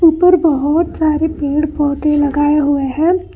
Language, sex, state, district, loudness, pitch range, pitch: Hindi, female, Karnataka, Bangalore, -14 LUFS, 290-325 Hz, 300 Hz